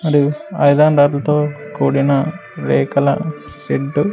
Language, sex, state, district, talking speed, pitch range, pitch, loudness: Telugu, male, Andhra Pradesh, Sri Satya Sai, 130 wpm, 140-150 Hz, 145 Hz, -16 LUFS